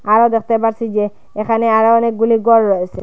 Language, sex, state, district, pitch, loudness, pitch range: Bengali, female, Assam, Hailakandi, 225 Hz, -14 LUFS, 215-230 Hz